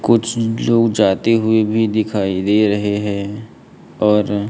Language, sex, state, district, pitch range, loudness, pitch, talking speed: Hindi, male, Maharashtra, Gondia, 105-110 Hz, -16 LUFS, 105 Hz, 135 wpm